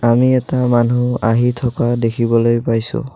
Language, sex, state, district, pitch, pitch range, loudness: Assamese, male, Assam, Kamrup Metropolitan, 120 Hz, 115-125 Hz, -15 LUFS